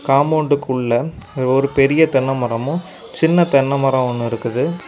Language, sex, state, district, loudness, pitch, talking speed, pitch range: Tamil, male, Tamil Nadu, Kanyakumari, -17 LUFS, 135 Hz, 125 wpm, 130-155 Hz